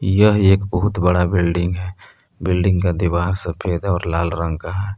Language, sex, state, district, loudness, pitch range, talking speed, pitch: Hindi, male, Jharkhand, Palamu, -18 LUFS, 85-95 Hz, 180 wpm, 90 Hz